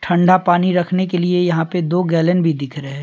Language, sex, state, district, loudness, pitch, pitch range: Hindi, male, Bihar, Patna, -16 LUFS, 175 Hz, 165-180 Hz